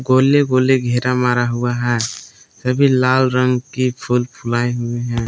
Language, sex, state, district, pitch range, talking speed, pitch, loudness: Hindi, male, Jharkhand, Palamu, 120-130 Hz, 160 wpm, 125 Hz, -17 LUFS